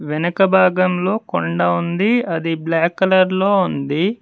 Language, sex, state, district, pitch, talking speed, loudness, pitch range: Telugu, male, Telangana, Mahabubabad, 180 Hz, 130 wpm, -17 LUFS, 165-190 Hz